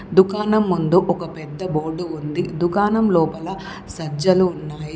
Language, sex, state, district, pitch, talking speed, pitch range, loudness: Telugu, female, Telangana, Komaram Bheem, 175 Hz, 120 wpm, 160-190 Hz, -20 LUFS